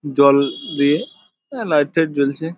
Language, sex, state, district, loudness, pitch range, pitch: Bengali, male, West Bengal, Jalpaiguri, -17 LUFS, 140-160 Hz, 150 Hz